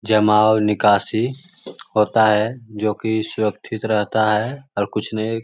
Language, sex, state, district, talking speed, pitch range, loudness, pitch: Magahi, male, Bihar, Lakhisarai, 155 wpm, 105-110 Hz, -19 LUFS, 110 Hz